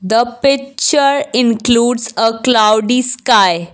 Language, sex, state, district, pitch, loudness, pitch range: English, female, Assam, Kamrup Metropolitan, 240 Hz, -13 LUFS, 225-260 Hz